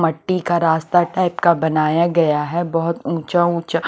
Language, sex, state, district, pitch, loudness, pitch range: Hindi, female, Punjab, Kapurthala, 170 Hz, -18 LUFS, 160-175 Hz